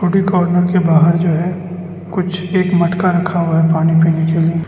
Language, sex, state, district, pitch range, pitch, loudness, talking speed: Hindi, male, Arunachal Pradesh, Lower Dibang Valley, 165-180 Hz, 175 Hz, -14 LUFS, 205 wpm